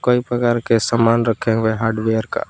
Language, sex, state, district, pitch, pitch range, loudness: Hindi, male, Jharkhand, Palamu, 115 Hz, 110-120 Hz, -18 LUFS